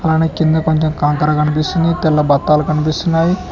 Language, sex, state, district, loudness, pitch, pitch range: Telugu, male, Telangana, Hyderabad, -14 LUFS, 155 Hz, 150-160 Hz